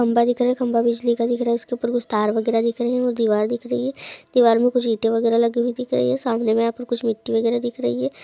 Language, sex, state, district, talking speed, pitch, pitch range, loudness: Hindi, female, Chhattisgarh, Korba, 315 wpm, 235 Hz, 225-240 Hz, -21 LUFS